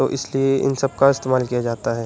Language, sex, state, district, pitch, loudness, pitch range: Hindi, male, Uttar Pradesh, Budaun, 130 Hz, -19 LUFS, 120-135 Hz